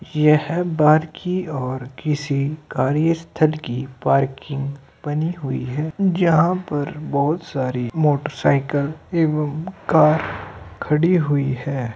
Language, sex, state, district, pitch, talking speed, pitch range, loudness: Hindi, male, Uttar Pradesh, Hamirpur, 150 Hz, 105 wpm, 140-160 Hz, -20 LUFS